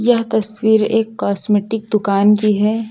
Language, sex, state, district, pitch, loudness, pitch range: Hindi, female, Uttar Pradesh, Lucknow, 215 Hz, -15 LUFS, 210-225 Hz